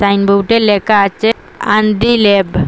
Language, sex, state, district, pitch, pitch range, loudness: Bengali, female, Assam, Hailakandi, 205 Hz, 200-220 Hz, -11 LUFS